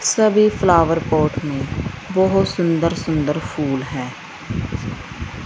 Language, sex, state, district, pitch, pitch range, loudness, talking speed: Hindi, female, Punjab, Fazilka, 165 Hz, 145-190 Hz, -19 LUFS, 100 wpm